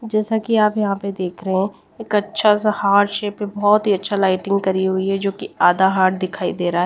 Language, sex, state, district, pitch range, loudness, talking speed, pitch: Hindi, female, Delhi, New Delhi, 190-210 Hz, -18 LUFS, 255 wpm, 200 Hz